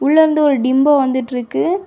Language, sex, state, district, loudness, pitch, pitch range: Tamil, female, Tamil Nadu, Kanyakumari, -14 LUFS, 285 Hz, 260-310 Hz